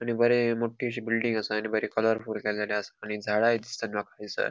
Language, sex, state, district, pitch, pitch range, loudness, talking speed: Konkani, male, Goa, North and South Goa, 110 Hz, 105-115 Hz, -28 LUFS, 215 wpm